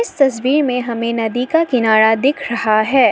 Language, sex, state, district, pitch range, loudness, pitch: Hindi, female, Assam, Sonitpur, 230-275 Hz, -15 LUFS, 250 Hz